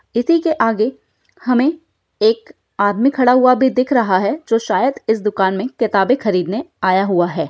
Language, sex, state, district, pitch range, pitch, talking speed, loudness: Hindi, female, Bihar, Saharsa, 205-260 Hz, 230 Hz, 175 wpm, -16 LUFS